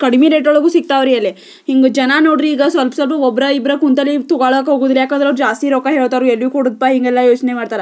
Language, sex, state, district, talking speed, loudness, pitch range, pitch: Kannada, female, Karnataka, Belgaum, 205 wpm, -13 LUFS, 255-285 Hz, 275 Hz